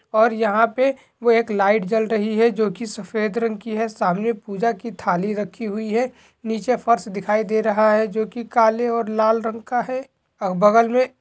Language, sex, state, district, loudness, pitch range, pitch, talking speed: Hindi, male, Jharkhand, Jamtara, -20 LUFS, 215-235 Hz, 225 Hz, 215 wpm